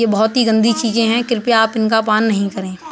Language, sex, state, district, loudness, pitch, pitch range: Hindi, male, Uttar Pradesh, Budaun, -15 LUFS, 225 Hz, 215-230 Hz